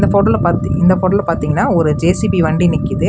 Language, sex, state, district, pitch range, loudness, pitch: Tamil, male, Tamil Nadu, Namakkal, 165-185 Hz, -14 LUFS, 175 Hz